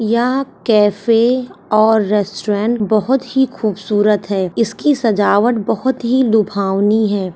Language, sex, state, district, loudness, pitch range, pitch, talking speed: Hindi, female, Uttar Pradesh, Ghazipur, -15 LUFS, 205-240 Hz, 220 Hz, 115 wpm